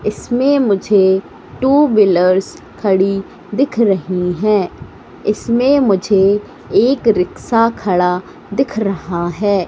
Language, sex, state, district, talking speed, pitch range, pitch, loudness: Hindi, female, Madhya Pradesh, Katni, 100 wpm, 190-230 Hz, 205 Hz, -15 LUFS